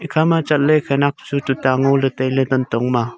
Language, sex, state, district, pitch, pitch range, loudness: Wancho, male, Arunachal Pradesh, Longding, 135 Hz, 130-150 Hz, -17 LUFS